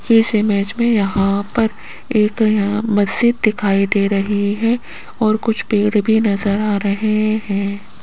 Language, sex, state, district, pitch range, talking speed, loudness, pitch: Hindi, female, Rajasthan, Jaipur, 200-220 Hz, 155 wpm, -17 LUFS, 210 Hz